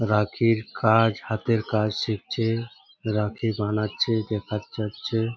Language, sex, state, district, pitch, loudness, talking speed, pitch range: Bengali, male, West Bengal, Jhargram, 110 Hz, -25 LUFS, 110 wpm, 105-115 Hz